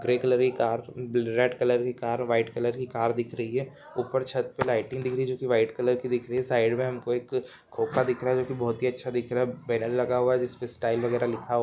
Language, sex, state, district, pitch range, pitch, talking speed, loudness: Hindi, male, Andhra Pradesh, Guntur, 120-125 Hz, 125 Hz, 280 wpm, -27 LUFS